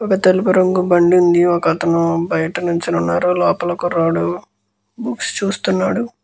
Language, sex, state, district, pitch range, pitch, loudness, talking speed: Telugu, male, Andhra Pradesh, Guntur, 170-185 Hz, 175 Hz, -16 LUFS, 105 wpm